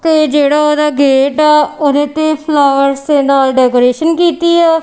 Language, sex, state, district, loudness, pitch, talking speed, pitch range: Punjabi, female, Punjab, Kapurthala, -10 LUFS, 295 Hz, 160 wpm, 275-310 Hz